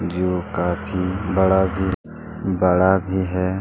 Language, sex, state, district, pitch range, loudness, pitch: Hindi, male, Chhattisgarh, Kabirdham, 90-95 Hz, -21 LUFS, 95 Hz